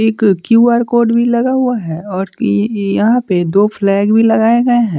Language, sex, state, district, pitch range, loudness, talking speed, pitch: Hindi, male, Bihar, West Champaran, 200-235 Hz, -13 LUFS, 215 wpm, 220 Hz